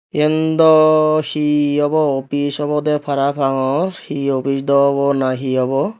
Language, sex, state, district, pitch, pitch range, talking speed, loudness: Chakma, male, Tripura, Dhalai, 145 Hz, 140-155 Hz, 140 wpm, -16 LUFS